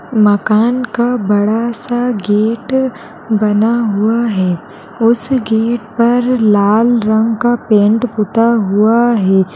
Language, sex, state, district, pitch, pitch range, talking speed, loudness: Hindi, female, Uttar Pradesh, Jalaun, 225 Hz, 210-240 Hz, 120 wpm, -13 LUFS